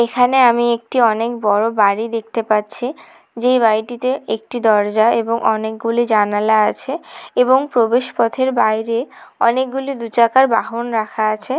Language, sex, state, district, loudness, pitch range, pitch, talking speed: Bengali, female, West Bengal, Jalpaiguri, -16 LUFS, 220-250 Hz, 230 Hz, 140 wpm